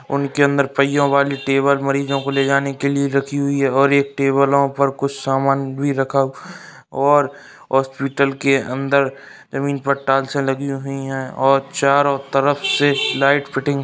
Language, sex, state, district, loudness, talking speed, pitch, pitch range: Hindi, male, Uttarakhand, Uttarkashi, -18 LUFS, 165 wpm, 140 Hz, 135-140 Hz